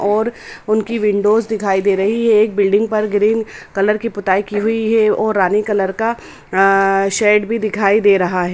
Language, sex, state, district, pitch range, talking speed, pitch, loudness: Hindi, female, Bihar, Samastipur, 195-220 Hz, 195 wpm, 210 Hz, -15 LUFS